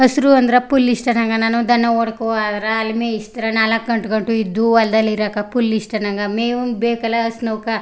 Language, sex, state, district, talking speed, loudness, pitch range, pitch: Kannada, female, Karnataka, Chamarajanagar, 175 wpm, -17 LUFS, 220-235 Hz, 225 Hz